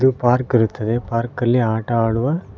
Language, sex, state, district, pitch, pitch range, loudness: Kannada, male, Karnataka, Koppal, 120 Hz, 115-125 Hz, -19 LUFS